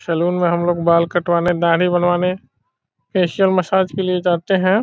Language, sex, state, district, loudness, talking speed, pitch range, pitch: Hindi, male, Bihar, Saran, -17 LUFS, 175 wpm, 170-185 Hz, 175 Hz